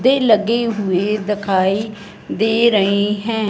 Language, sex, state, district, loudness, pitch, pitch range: Hindi, female, Punjab, Fazilka, -17 LUFS, 210 Hz, 200-225 Hz